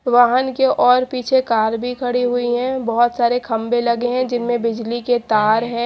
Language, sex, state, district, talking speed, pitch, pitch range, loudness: Hindi, female, Haryana, Charkhi Dadri, 195 wpm, 245 Hz, 235-250 Hz, -17 LUFS